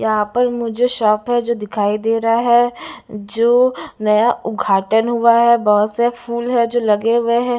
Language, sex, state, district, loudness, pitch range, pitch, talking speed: Hindi, female, Bihar, West Champaran, -16 LUFS, 215-240 Hz, 235 Hz, 180 wpm